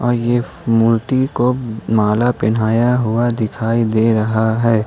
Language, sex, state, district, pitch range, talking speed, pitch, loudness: Hindi, male, Jharkhand, Ranchi, 110-120 Hz, 135 wpm, 115 Hz, -16 LUFS